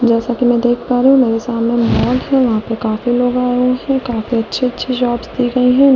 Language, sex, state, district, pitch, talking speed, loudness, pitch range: Hindi, female, Delhi, New Delhi, 245 Hz, 240 wpm, -15 LUFS, 235-250 Hz